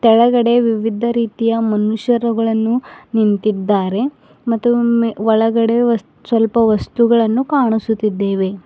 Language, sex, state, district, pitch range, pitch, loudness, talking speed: Kannada, female, Karnataka, Bidar, 215-235 Hz, 230 Hz, -16 LUFS, 85 wpm